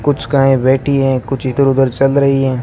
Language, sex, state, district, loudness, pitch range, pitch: Hindi, male, Rajasthan, Bikaner, -13 LUFS, 130-135 Hz, 135 Hz